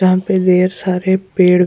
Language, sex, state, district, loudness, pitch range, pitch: Hindi, female, Goa, North and South Goa, -14 LUFS, 180-190 Hz, 185 Hz